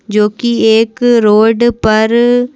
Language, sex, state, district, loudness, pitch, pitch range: Hindi, female, Madhya Pradesh, Bhopal, -10 LUFS, 225 Hz, 215-240 Hz